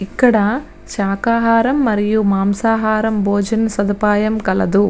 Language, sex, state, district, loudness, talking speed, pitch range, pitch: Telugu, female, Andhra Pradesh, Visakhapatnam, -16 LUFS, 85 wpm, 200-225 Hz, 215 Hz